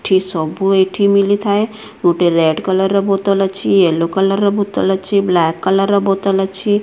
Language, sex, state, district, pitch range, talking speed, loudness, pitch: Odia, female, Odisha, Sambalpur, 190-200 Hz, 150 wpm, -15 LUFS, 195 Hz